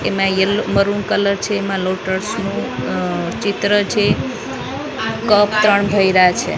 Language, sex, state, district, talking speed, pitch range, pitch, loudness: Gujarati, female, Maharashtra, Mumbai Suburban, 135 wpm, 195-210 Hz, 200 Hz, -17 LUFS